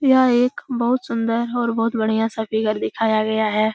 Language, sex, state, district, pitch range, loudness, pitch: Hindi, female, Bihar, Jahanabad, 220-245 Hz, -20 LUFS, 225 Hz